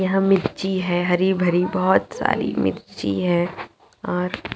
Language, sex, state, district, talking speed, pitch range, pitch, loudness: Hindi, female, Chhattisgarh, Jashpur, 120 wpm, 175-190 Hz, 180 Hz, -21 LUFS